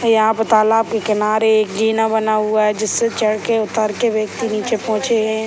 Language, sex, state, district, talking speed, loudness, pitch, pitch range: Hindi, female, Bihar, Sitamarhi, 210 wpm, -17 LUFS, 220 Hz, 215-225 Hz